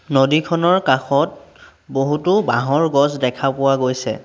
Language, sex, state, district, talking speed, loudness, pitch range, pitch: Assamese, male, Assam, Sonitpur, 115 wpm, -17 LUFS, 130-155 Hz, 140 Hz